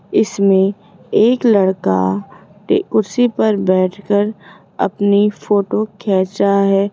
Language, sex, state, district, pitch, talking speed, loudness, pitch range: Hindi, female, Rajasthan, Jaipur, 200 Hz, 105 wpm, -15 LUFS, 190-215 Hz